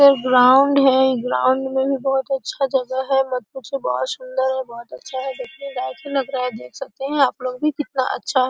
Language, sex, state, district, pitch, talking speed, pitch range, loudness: Hindi, female, Bihar, Araria, 265 Hz, 200 wpm, 255-275 Hz, -20 LUFS